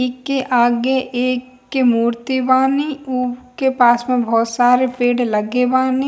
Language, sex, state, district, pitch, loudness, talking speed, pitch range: Bhojpuri, female, Bihar, East Champaran, 250 Hz, -17 LUFS, 140 wpm, 245-260 Hz